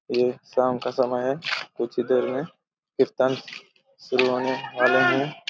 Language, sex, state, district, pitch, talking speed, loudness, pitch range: Hindi, male, Chhattisgarh, Raigarh, 130 Hz, 110 wpm, -24 LUFS, 125-130 Hz